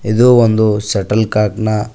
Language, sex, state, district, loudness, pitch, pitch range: Kannada, male, Karnataka, Koppal, -13 LUFS, 110 Hz, 105-110 Hz